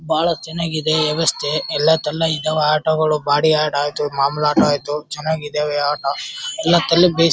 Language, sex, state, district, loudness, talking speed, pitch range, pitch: Kannada, male, Karnataka, Bellary, -18 LUFS, 100 wpm, 150-160 Hz, 155 Hz